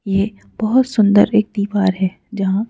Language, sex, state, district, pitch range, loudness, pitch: Hindi, female, Madhya Pradesh, Bhopal, 195-215 Hz, -17 LUFS, 205 Hz